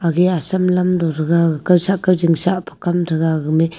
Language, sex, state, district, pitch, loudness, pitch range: Wancho, female, Arunachal Pradesh, Longding, 170 Hz, -16 LUFS, 165-180 Hz